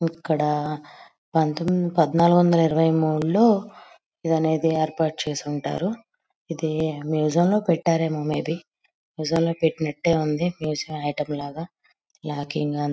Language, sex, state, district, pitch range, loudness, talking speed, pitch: Telugu, female, Andhra Pradesh, Guntur, 150-170 Hz, -23 LUFS, 110 wpm, 160 Hz